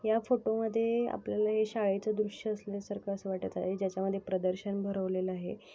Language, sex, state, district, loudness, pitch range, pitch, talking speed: Marathi, female, Maharashtra, Sindhudurg, -33 LUFS, 195-220 Hz, 200 Hz, 180 wpm